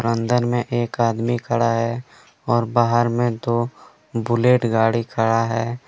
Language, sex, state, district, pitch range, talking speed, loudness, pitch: Hindi, male, Jharkhand, Deoghar, 115-120 Hz, 145 wpm, -20 LUFS, 120 Hz